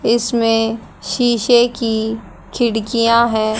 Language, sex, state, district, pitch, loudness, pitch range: Hindi, female, Haryana, Rohtak, 230 Hz, -16 LUFS, 220-235 Hz